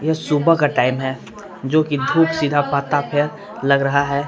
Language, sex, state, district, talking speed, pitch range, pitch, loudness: Hindi, male, Jharkhand, Palamu, 180 wpm, 140-155 Hz, 145 Hz, -18 LUFS